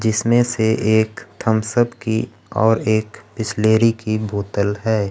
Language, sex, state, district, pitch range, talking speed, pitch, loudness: Hindi, male, Bihar, Kaimur, 110-115 Hz, 140 wpm, 110 Hz, -19 LUFS